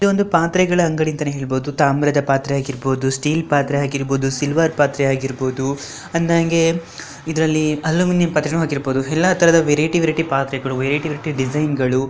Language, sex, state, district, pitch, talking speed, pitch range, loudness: Kannada, female, Karnataka, Dharwad, 145 Hz, 135 wpm, 135-165 Hz, -18 LUFS